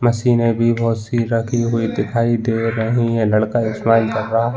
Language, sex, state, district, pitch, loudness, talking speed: Hindi, male, Chhattisgarh, Balrampur, 115 Hz, -18 LUFS, 225 wpm